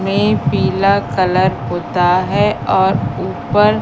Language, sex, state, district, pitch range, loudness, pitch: Hindi, female, Madhya Pradesh, Katni, 180-200 Hz, -15 LUFS, 190 Hz